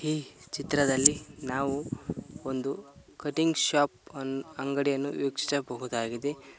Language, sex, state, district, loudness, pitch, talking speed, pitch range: Kannada, male, Karnataka, Koppal, -29 LUFS, 140 Hz, 80 wpm, 135-145 Hz